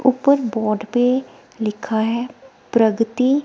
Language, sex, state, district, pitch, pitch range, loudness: Hindi, female, Himachal Pradesh, Shimla, 245 Hz, 225-260 Hz, -19 LUFS